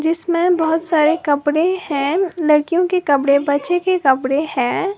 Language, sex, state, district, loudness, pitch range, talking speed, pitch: Hindi, female, Uttar Pradesh, Lalitpur, -17 LUFS, 285-355 Hz, 145 wpm, 320 Hz